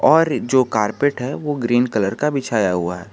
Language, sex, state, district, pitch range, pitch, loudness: Hindi, male, Jharkhand, Garhwa, 105-140 Hz, 125 Hz, -19 LUFS